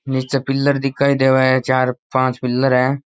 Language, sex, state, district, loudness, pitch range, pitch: Rajasthani, male, Rajasthan, Nagaur, -17 LUFS, 130-135 Hz, 130 Hz